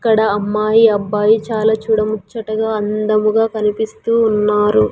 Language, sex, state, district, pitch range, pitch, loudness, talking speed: Telugu, female, Andhra Pradesh, Sri Satya Sai, 210-220 Hz, 215 Hz, -15 LUFS, 95 wpm